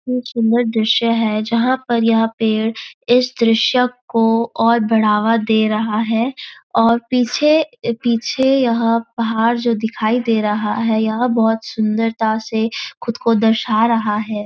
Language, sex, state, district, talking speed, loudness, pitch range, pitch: Hindi, female, Uttarakhand, Uttarkashi, 140 wpm, -16 LUFS, 220-235 Hz, 230 Hz